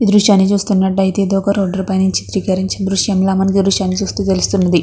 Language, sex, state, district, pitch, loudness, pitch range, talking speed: Telugu, female, Andhra Pradesh, Krishna, 195 Hz, -15 LUFS, 190-200 Hz, 200 wpm